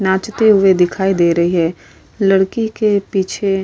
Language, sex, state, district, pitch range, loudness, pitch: Hindi, female, Uttar Pradesh, Hamirpur, 185-205 Hz, -15 LUFS, 195 Hz